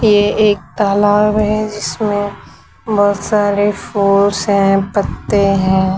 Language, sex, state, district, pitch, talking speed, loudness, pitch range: Hindi, female, Maharashtra, Mumbai Suburban, 205 Hz, 110 wpm, -14 LUFS, 200-210 Hz